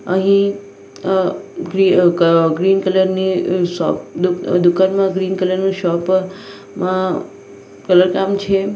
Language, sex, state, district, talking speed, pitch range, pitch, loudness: Gujarati, female, Gujarat, Valsad, 90 wpm, 175-190 Hz, 185 Hz, -16 LUFS